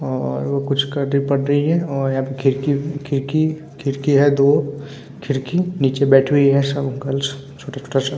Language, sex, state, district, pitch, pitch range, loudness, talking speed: Hindi, male, Bihar, Vaishali, 140 Hz, 135-145 Hz, -19 LUFS, 170 wpm